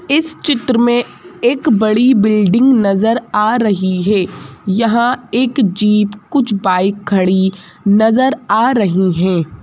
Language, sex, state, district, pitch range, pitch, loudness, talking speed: Hindi, female, Madhya Pradesh, Bhopal, 195-245 Hz, 215 Hz, -13 LUFS, 125 wpm